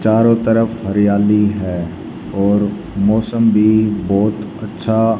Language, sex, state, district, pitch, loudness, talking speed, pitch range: Hindi, male, Haryana, Rohtak, 105 Hz, -15 LUFS, 105 wpm, 100-110 Hz